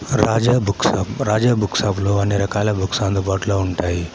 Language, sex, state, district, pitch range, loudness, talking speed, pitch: Telugu, male, Andhra Pradesh, Chittoor, 95-105 Hz, -19 LUFS, 175 wpm, 100 Hz